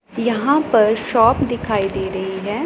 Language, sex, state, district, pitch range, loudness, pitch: Hindi, female, Punjab, Pathankot, 200-240 Hz, -18 LUFS, 225 Hz